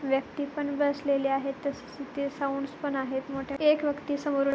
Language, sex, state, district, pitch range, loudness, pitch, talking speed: Marathi, female, Maharashtra, Pune, 275-285 Hz, -29 LUFS, 280 Hz, 185 wpm